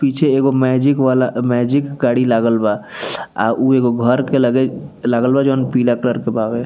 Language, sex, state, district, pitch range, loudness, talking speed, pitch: Bhojpuri, male, Bihar, East Champaran, 120-135 Hz, -16 LUFS, 190 wpm, 125 Hz